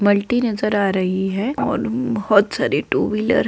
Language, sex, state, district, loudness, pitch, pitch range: Hindi, female, Bihar, Saharsa, -19 LUFS, 215 Hz, 200-245 Hz